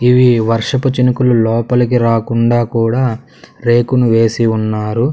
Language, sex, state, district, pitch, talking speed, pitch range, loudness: Telugu, male, Andhra Pradesh, Sri Satya Sai, 120 Hz, 105 wpm, 115-125 Hz, -13 LUFS